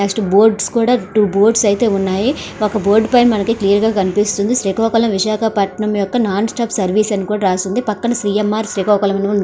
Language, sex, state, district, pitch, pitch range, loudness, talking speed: Telugu, female, Andhra Pradesh, Srikakulam, 210 Hz, 200-225 Hz, -15 LUFS, 170 wpm